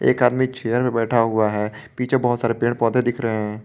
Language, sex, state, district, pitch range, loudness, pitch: Hindi, male, Jharkhand, Garhwa, 110-125 Hz, -20 LUFS, 115 Hz